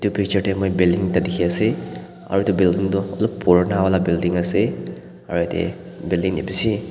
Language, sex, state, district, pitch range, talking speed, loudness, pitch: Nagamese, male, Nagaland, Dimapur, 90-95 Hz, 175 wpm, -20 LUFS, 95 Hz